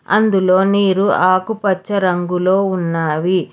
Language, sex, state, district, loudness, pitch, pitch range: Telugu, female, Telangana, Hyderabad, -15 LUFS, 185 Hz, 180-200 Hz